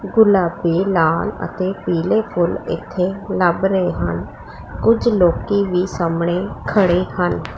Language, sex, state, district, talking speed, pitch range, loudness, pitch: Punjabi, female, Punjab, Pathankot, 120 wpm, 175-200 Hz, -18 LUFS, 185 Hz